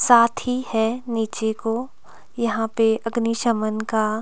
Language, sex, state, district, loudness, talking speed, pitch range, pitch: Hindi, female, Himachal Pradesh, Shimla, -22 LUFS, 115 wpm, 220-235 Hz, 230 Hz